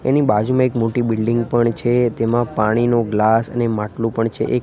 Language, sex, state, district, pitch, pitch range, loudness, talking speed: Gujarati, male, Gujarat, Gandhinagar, 115 Hz, 115-120 Hz, -18 LUFS, 195 wpm